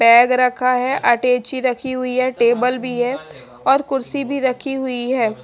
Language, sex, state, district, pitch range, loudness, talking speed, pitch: Hindi, female, Haryana, Charkhi Dadri, 245-265 Hz, -18 LUFS, 175 wpm, 255 Hz